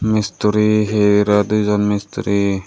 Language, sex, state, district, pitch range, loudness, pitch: Bengali, male, Tripura, Dhalai, 100-105 Hz, -16 LUFS, 105 Hz